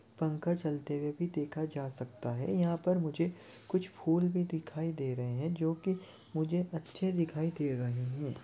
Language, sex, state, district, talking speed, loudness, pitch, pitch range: Hindi, male, Rajasthan, Churu, 185 wpm, -35 LUFS, 160 Hz, 140-175 Hz